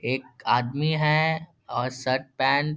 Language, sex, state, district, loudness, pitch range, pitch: Hindi, male, Bihar, Darbhanga, -25 LUFS, 130-155 Hz, 135 Hz